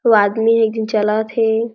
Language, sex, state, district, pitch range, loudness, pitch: Chhattisgarhi, female, Chhattisgarh, Jashpur, 215-225 Hz, -16 LUFS, 220 Hz